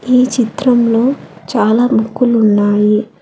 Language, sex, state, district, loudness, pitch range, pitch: Telugu, female, Telangana, Hyderabad, -12 LUFS, 210-250 Hz, 230 Hz